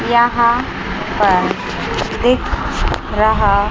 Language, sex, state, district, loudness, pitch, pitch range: Hindi, female, Chandigarh, Chandigarh, -16 LUFS, 235 Hz, 210-240 Hz